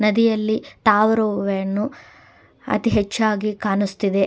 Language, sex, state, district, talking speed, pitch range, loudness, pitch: Kannada, female, Karnataka, Dakshina Kannada, 100 wpm, 200-220 Hz, -20 LUFS, 210 Hz